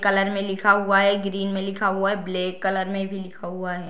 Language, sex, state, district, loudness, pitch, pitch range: Hindi, female, Bihar, Darbhanga, -23 LUFS, 195 Hz, 190-195 Hz